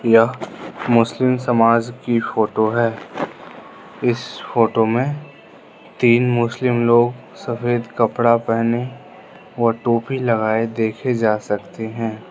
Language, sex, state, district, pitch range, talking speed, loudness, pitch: Hindi, male, Arunachal Pradesh, Lower Dibang Valley, 115-120 Hz, 105 wpm, -19 LUFS, 115 Hz